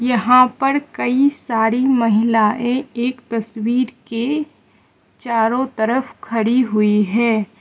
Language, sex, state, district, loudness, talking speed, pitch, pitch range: Hindi, female, Mizoram, Aizawl, -17 LUFS, 100 wpm, 235 Hz, 225-255 Hz